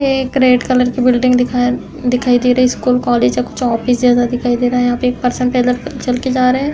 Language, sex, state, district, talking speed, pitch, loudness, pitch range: Hindi, female, Uttar Pradesh, Hamirpur, 265 wpm, 250 Hz, -14 LUFS, 245-255 Hz